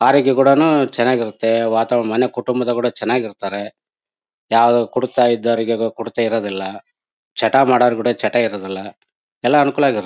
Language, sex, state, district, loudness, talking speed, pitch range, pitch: Kannada, male, Karnataka, Bellary, -17 LUFS, 130 wpm, 115-125 Hz, 120 Hz